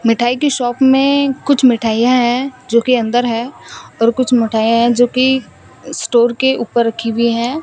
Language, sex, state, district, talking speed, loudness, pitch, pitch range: Hindi, female, Rajasthan, Bikaner, 180 wpm, -14 LUFS, 245 Hz, 235-260 Hz